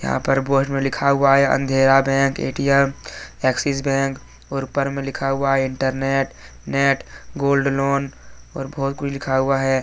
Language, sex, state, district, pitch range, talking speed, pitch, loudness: Hindi, male, Jharkhand, Deoghar, 135-140 Hz, 120 wpm, 135 Hz, -20 LUFS